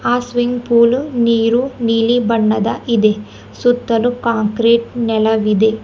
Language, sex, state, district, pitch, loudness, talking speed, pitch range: Kannada, female, Karnataka, Bidar, 230 Hz, -15 LUFS, 100 wpm, 220-245 Hz